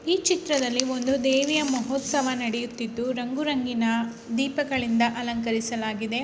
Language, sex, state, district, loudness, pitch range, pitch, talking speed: Kannada, female, Karnataka, Chamarajanagar, -25 LUFS, 235-275 Hz, 250 Hz, 95 wpm